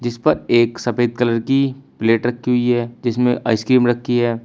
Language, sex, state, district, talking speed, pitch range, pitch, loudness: Hindi, male, Uttar Pradesh, Shamli, 190 wpm, 115-125 Hz, 120 Hz, -18 LUFS